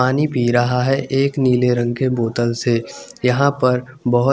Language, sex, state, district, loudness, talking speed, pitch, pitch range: Hindi, male, Chandigarh, Chandigarh, -18 LUFS, 195 wpm, 125 Hz, 120-135 Hz